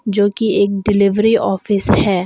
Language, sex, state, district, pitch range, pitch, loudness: Hindi, female, Arunachal Pradesh, Longding, 200-210 Hz, 205 Hz, -15 LUFS